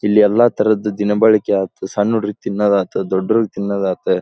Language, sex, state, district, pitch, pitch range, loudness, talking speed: Kannada, male, Karnataka, Dharwad, 105 Hz, 100-110 Hz, -16 LUFS, 140 wpm